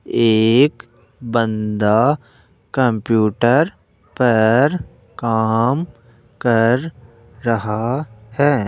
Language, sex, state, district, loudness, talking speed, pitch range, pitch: Hindi, male, Rajasthan, Jaipur, -17 LUFS, 55 wpm, 110-130 Hz, 115 Hz